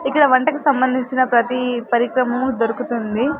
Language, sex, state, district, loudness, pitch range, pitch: Telugu, female, Andhra Pradesh, Sri Satya Sai, -18 LUFS, 240-265 Hz, 255 Hz